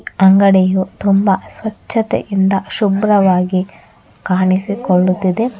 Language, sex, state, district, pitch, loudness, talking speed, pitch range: Kannada, female, Karnataka, Bellary, 190 Hz, -14 LUFS, 55 wpm, 185-205 Hz